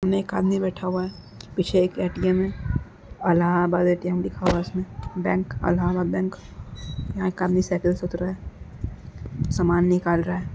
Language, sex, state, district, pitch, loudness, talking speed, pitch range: Hindi, male, Uttar Pradesh, Jalaun, 180 Hz, -24 LUFS, 175 wpm, 175-185 Hz